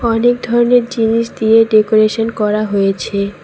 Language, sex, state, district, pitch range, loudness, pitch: Bengali, female, West Bengal, Cooch Behar, 210-230 Hz, -13 LUFS, 225 Hz